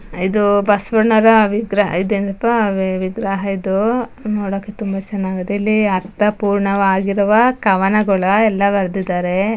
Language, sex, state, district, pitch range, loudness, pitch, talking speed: Kannada, female, Karnataka, Mysore, 195-215 Hz, -16 LUFS, 200 Hz, 90 wpm